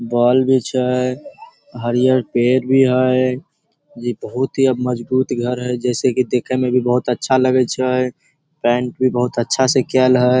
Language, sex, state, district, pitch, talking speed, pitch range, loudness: Maithili, male, Bihar, Samastipur, 125 Hz, 175 wpm, 125-130 Hz, -17 LUFS